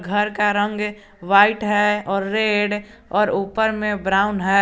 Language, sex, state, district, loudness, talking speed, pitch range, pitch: Hindi, male, Jharkhand, Garhwa, -19 LUFS, 155 wpm, 200-210 Hz, 210 Hz